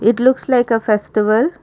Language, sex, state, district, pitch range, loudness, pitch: English, female, Karnataka, Bangalore, 215-255 Hz, -15 LUFS, 230 Hz